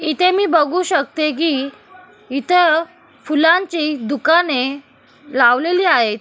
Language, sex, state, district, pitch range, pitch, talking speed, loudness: Marathi, female, Maharashtra, Solapur, 280-360 Hz, 315 Hz, 95 wpm, -16 LUFS